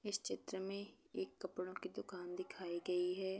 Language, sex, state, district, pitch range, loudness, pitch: Hindi, female, Chhattisgarh, Bastar, 180-195 Hz, -45 LUFS, 185 Hz